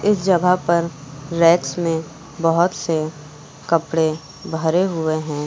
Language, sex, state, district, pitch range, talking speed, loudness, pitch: Hindi, female, Uttar Pradesh, Lucknow, 155-170 Hz, 120 wpm, -19 LUFS, 165 Hz